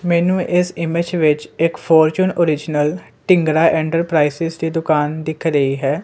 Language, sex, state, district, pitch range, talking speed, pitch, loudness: Punjabi, male, Punjab, Kapurthala, 155-170 Hz, 140 wpm, 165 Hz, -17 LUFS